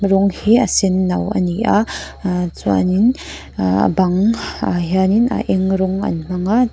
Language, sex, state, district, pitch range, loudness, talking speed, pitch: Mizo, female, Mizoram, Aizawl, 180-210 Hz, -17 LUFS, 195 wpm, 190 Hz